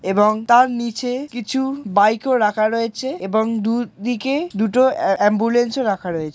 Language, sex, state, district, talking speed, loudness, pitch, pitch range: Bengali, male, West Bengal, Jalpaiguri, 160 wpm, -18 LUFS, 230 Hz, 210-255 Hz